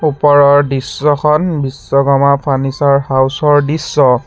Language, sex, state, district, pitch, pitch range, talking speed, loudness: Assamese, male, Assam, Sonitpur, 140 Hz, 135-150 Hz, 100 wpm, -12 LUFS